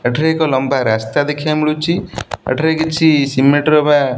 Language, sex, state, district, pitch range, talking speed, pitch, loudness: Odia, male, Odisha, Nuapada, 135-155 Hz, 170 wpm, 150 Hz, -15 LUFS